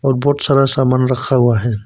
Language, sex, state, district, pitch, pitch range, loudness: Hindi, male, Arunachal Pradesh, Papum Pare, 130 Hz, 125-135 Hz, -14 LUFS